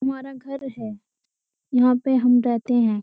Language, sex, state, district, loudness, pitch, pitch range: Hindi, female, Uttar Pradesh, Jyotiba Phule Nagar, -20 LUFS, 250 Hz, 235-265 Hz